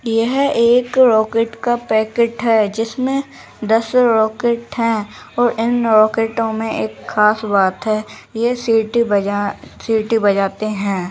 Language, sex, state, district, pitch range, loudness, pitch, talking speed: Hindi, female, Uttarakhand, Tehri Garhwal, 215-235 Hz, -16 LUFS, 225 Hz, 120 wpm